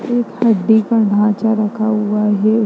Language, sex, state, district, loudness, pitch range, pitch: Hindi, female, Bihar, Darbhanga, -15 LUFS, 210-225 Hz, 220 Hz